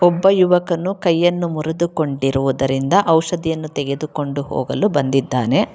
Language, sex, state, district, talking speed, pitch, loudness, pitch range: Kannada, female, Karnataka, Bangalore, 85 wpm, 160 Hz, -18 LUFS, 140-175 Hz